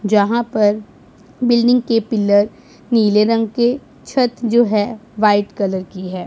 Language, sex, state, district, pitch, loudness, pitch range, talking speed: Hindi, male, Punjab, Pathankot, 220 Hz, -16 LUFS, 205-235 Hz, 145 wpm